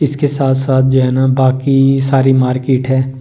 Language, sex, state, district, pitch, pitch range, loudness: Hindi, male, Delhi, New Delhi, 130 Hz, 130-135 Hz, -12 LUFS